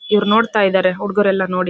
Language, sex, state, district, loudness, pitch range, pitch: Kannada, female, Karnataka, Bellary, -16 LUFS, 190-210 Hz, 200 Hz